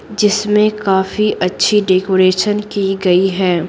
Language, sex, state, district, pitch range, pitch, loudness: Hindi, female, Bihar, Patna, 185-210 Hz, 195 Hz, -14 LUFS